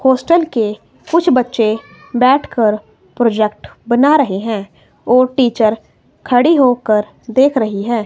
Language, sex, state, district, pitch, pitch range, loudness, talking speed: Hindi, female, Himachal Pradesh, Shimla, 235 Hz, 215-260 Hz, -14 LUFS, 120 wpm